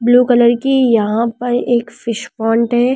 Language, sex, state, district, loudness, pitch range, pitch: Hindi, female, Delhi, New Delhi, -14 LUFS, 230-245 Hz, 240 Hz